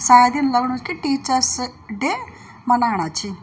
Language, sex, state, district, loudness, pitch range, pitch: Garhwali, female, Uttarakhand, Tehri Garhwal, -19 LUFS, 235-275 Hz, 250 Hz